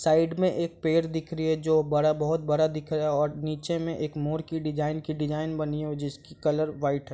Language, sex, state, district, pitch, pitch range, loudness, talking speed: Hindi, male, Bihar, Gopalganj, 155 Hz, 150-160 Hz, -28 LUFS, 260 wpm